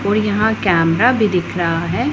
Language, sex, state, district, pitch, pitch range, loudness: Hindi, female, Punjab, Pathankot, 200 Hz, 170-215 Hz, -16 LUFS